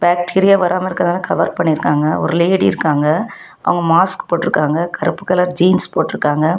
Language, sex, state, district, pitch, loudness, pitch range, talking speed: Tamil, female, Tamil Nadu, Kanyakumari, 175 Hz, -15 LUFS, 160-185 Hz, 135 wpm